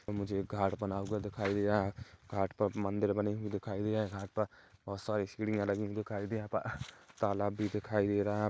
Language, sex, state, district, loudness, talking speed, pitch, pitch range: Hindi, male, Chhattisgarh, Kabirdham, -36 LUFS, 260 wpm, 105 Hz, 100-105 Hz